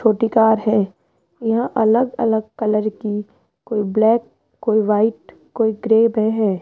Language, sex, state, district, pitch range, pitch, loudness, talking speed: Hindi, female, Rajasthan, Jaipur, 215-225 Hz, 220 Hz, -18 LUFS, 145 wpm